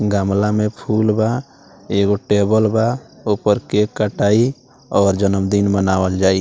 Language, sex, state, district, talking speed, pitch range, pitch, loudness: Bhojpuri, male, Bihar, Muzaffarpur, 130 wpm, 100-110 Hz, 105 Hz, -17 LUFS